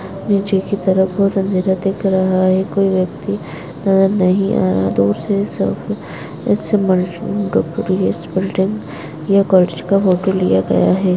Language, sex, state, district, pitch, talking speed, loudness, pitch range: Hindi, female, Uttarakhand, Tehri Garhwal, 190 Hz, 105 wpm, -16 LUFS, 180-195 Hz